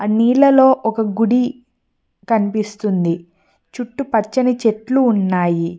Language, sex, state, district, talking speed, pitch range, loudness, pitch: Telugu, female, Telangana, Mahabubabad, 75 wpm, 205-250 Hz, -16 LUFS, 225 Hz